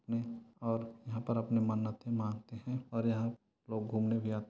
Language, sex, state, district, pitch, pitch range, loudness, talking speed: Hindi, male, Chhattisgarh, Korba, 115 Hz, 110-115 Hz, -37 LUFS, 200 wpm